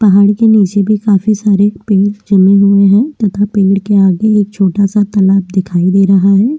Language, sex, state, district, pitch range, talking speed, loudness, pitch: Hindi, female, Uttarakhand, Tehri Garhwal, 195-210 Hz, 200 wpm, -10 LUFS, 200 Hz